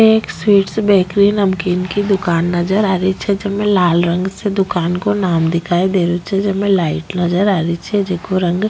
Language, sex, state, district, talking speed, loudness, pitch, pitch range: Rajasthani, female, Rajasthan, Nagaur, 205 wpm, -15 LUFS, 190 Hz, 175-200 Hz